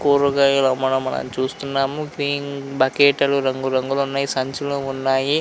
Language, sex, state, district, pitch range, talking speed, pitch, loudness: Telugu, male, Andhra Pradesh, Visakhapatnam, 130-140 Hz, 120 wpm, 140 Hz, -20 LUFS